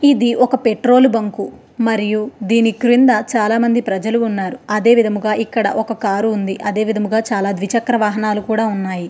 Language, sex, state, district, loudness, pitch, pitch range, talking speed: Telugu, female, Andhra Pradesh, Krishna, -16 LUFS, 220 Hz, 210-235 Hz, 150 wpm